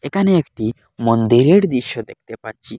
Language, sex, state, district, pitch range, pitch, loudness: Bengali, male, Assam, Hailakandi, 115-165 Hz, 125 Hz, -16 LUFS